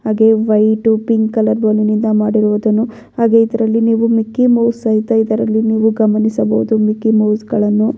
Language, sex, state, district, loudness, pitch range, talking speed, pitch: Kannada, female, Karnataka, Bellary, -13 LUFS, 215-225 Hz, 135 wpm, 220 Hz